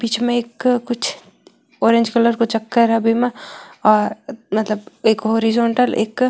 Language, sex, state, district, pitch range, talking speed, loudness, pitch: Marwari, female, Rajasthan, Nagaur, 225-240 Hz, 145 wpm, -18 LUFS, 230 Hz